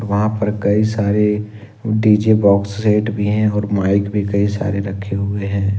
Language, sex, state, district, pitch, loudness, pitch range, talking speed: Hindi, male, Jharkhand, Ranchi, 105 Hz, -17 LUFS, 100-105 Hz, 175 wpm